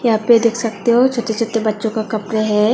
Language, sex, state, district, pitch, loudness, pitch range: Hindi, female, Tripura, West Tripura, 225 Hz, -16 LUFS, 215-235 Hz